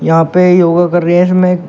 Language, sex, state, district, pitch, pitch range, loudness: Hindi, male, Uttar Pradesh, Shamli, 175 Hz, 175-180 Hz, -9 LUFS